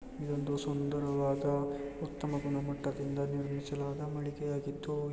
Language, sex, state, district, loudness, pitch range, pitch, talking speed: Kannada, male, Karnataka, Dakshina Kannada, -36 LUFS, 140-145 Hz, 140 Hz, 80 wpm